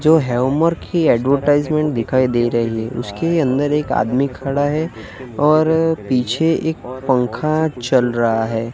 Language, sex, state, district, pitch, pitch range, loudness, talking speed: Hindi, male, Gujarat, Gandhinagar, 135 Hz, 120-155 Hz, -17 LUFS, 145 wpm